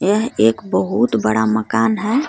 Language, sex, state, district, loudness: Hindi, female, Jharkhand, Garhwa, -17 LUFS